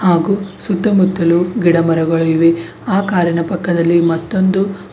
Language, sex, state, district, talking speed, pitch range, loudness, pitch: Kannada, female, Karnataka, Bidar, 120 wpm, 170-190 Hz, -14 LUFS, 175 Hz